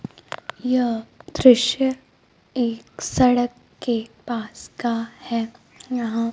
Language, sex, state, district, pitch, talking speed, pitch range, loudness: Hindi, female, Bihar, Kaimur, 240 Hz, 85 wpm, 230-250 Hz, -22 LUFS